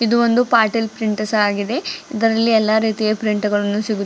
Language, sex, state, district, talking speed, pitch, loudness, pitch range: Kannada, female, Karnataka, Bidar, 165 wpm, 220 Hz, -18 LUFS, 215-230 Hz